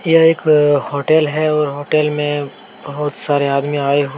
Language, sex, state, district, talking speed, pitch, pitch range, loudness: Hindi, male, Jharkhand, Deoghar, 185 wpm, 145 Hz, 145-155 Hz, -15 LUFS